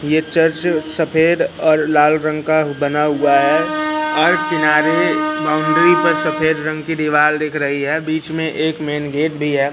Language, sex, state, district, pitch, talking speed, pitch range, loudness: Hindi, male, Madhya Pradesh, Katni, 155 Hz, 175 wpm, 150-155 Hz, -16 LUFS